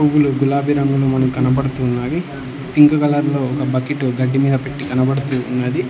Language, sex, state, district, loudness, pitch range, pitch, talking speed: Telugu, male, Telangana, Hyderabad, -17 LUFS, 130-140 Hz, 135 Hz, 155 wpm